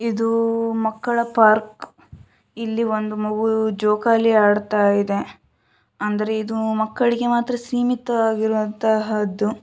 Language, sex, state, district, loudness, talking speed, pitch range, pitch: Kannada, female, Karnataka, Shimoga, -20 LUFS, 95 wpm, 215-230 Hz, 220 Hz